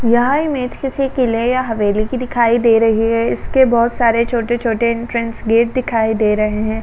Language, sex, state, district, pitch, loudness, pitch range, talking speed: Hindi, female, Uttar Pradesh, Budaun, 235 Hz, -16 LUFS, 225-250 Hz, 185 wpm